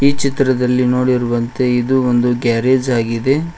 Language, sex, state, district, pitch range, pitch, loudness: Kannada, male, Karnataka, Koppal, 120-130 Hz, 125 Hz, -15 LUFS